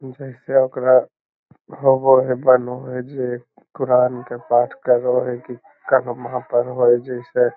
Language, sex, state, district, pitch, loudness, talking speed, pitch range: Magahi, male, Bihar, Lakhisarai, 125 Hz, -18 LUFS, 140 wpm, 120-130 Hz